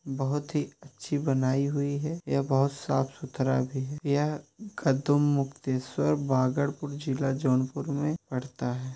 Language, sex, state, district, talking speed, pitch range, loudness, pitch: Hindi, male, Uttar Pradesh, Jyotiba Phule Nagar, 135 wpm, 130-145 Hz, -29 LUFS, 140 Hz